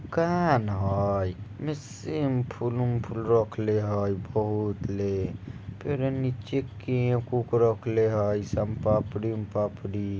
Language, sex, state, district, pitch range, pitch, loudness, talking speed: Maithili, male, Bihar, Vaishali, 105-125 Hz, 110 Hz, -28 LUFS, 105 wpm